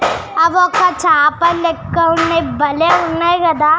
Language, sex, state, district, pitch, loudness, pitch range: Telugu, female, Telangana, Nalgonda, 330 Hz, -13 LUFS, 315-340 Hz